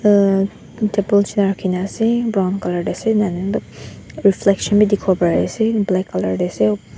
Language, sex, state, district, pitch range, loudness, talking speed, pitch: Nagamese, female, Nagaland, Dimapur, 175-210 Hz, -18 LUFS, 145 wpm, 195 Hz